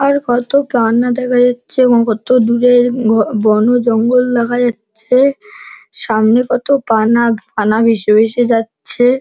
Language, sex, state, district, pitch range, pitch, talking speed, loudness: Bengali, male, West Bengal, Dakshin Dinajpur, 225-250 Hz, 240 Hz, 125 wpm, -12 LUFS